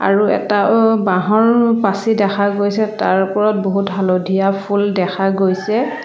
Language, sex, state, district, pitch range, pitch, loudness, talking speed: Assamese, female, Assam, Sonitpur, 195-215 Hz, 200 Hz, -15 LUFS, 140 wpm